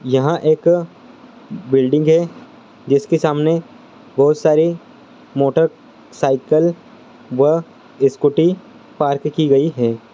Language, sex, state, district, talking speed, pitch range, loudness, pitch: Hindi, male, Andhra Pradesh, Guntur, 95 wpm, 140-210 Hz, -16 LUFS, 160 Hz